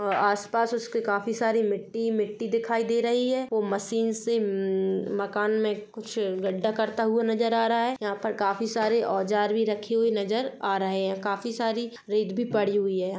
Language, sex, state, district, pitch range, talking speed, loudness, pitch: Hindi, female, Bihar, Gopalganj, 205-230 Hz, 200 wpm, -27 LUFS, 220 Hz